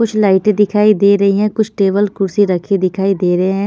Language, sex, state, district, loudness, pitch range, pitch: Hindi, female, Haryana, Jhajjar, -13 LUFS, 195-210 Hz, 200 Hz